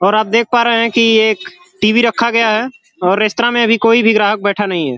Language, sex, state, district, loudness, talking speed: Hindi, male, Uttar Pradesh, Gorakhpur, -13 LUFS, 255 wpm